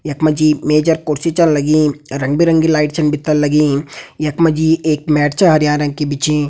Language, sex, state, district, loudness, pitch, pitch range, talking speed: Garhwali, male, Uttarakhand, Tehri Garhwal, -14 LUFS, 150 Hz, 150-160 Hz, 220 wpm